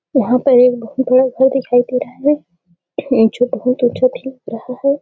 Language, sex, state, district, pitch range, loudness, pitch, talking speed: Hindi, female, Chhattisgarh, Sarguja, 245-265 Hz, -15 LUFS, 255 Hz, 190 wpm